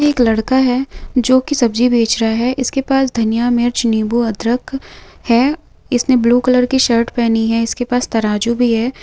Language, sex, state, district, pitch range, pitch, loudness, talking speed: Hindi, female, Chhattisgarh, Bilaspur, 230-260 Hz, 245 Hz, -15 LUFS, 195 wpm